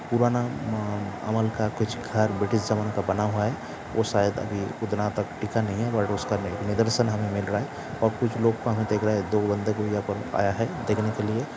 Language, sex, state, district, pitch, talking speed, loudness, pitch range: Hindi, male, Bihar, Saran, 105 Hz, 190 wpm, -26 LUFS, 105-115 Hz